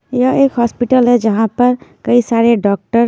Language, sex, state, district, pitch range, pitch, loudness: Hindi, female, Himachal Pradesh, Shimla, 230-250 Hz, 240 Hz, -13 LUFS